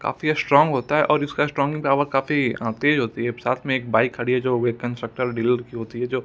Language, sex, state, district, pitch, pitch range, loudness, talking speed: Hindi, male, Punjab, Kapurthala, 125 Hz, 120-145 Hz, -22 LUFS, 240 wpm